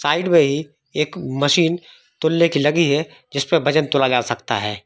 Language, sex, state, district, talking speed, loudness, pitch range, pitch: Hindi, male, Jharkhand, Jamtara, 150 wpm, -18 LUFS, 140-165 Hz, 145 Hz